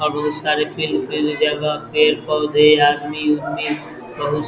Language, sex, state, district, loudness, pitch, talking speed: Hindi, male, Bihar, Vaishali, -18 LUFS, 150 Hz, 95 wpm